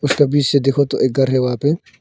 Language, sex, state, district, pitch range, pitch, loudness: Hindi, male, Arunachal Pradesh, Longding, 135-145 Hz, 140 Hz, -16 LUFS